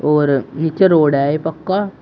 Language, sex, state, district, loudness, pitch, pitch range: Hindi, male, Uttar Pradesh, Shamli, -16 LUFS, 155 Hz, 145-185 Hz